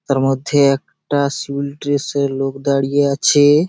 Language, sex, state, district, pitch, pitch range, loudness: Bengali, male, West Bengal, Malda, 140 Hz, 135-145 Hz, -17 LUFS